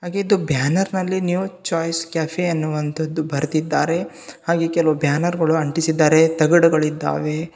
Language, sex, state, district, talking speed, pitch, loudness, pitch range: Kannada, male, Karnataka, Bidar, 110 wpm, 165 Hz, -19 LUFS, 155-175 Hz